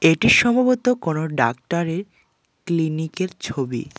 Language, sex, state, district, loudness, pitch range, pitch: Bengali, male, West Bengal, Alipurduar, -20 LUFS, 135-185 Hz, 160 Hz